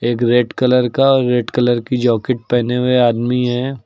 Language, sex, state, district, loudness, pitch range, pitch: Hindi, male, Uttar Pradesh, Lucknow, -15 LUFS, 120-125 Hz, 125 Hz